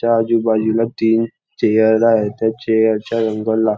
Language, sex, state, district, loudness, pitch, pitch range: Marathi, male, Maharashtra, Nagpur, -16 LUFS, 110 Hz, 110-115 Hz